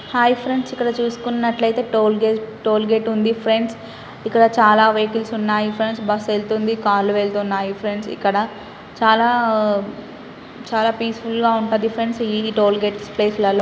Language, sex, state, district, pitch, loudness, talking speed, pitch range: Telugu, female, Telangana, Karimnagar, 220 Hz, -18 LUFS, 130 wpm, 210-230 Hz